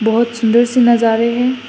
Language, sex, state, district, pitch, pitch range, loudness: Hindi, female, Assam, Hailakandi, 235 Hz, 230-245 Hz, -13 LUFS